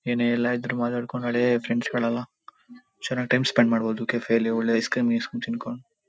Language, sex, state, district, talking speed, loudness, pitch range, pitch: Kannada, male, Karnataka, Shimoga, 165 wpm, -25 LUFS, 115-130 Hz, 120 Hz